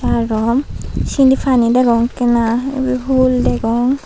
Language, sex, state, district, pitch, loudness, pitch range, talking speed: Chakma, female, Tripura, Unakoti, 250 Hz, -15 LUFS, 235-260 Hz, 120 wpm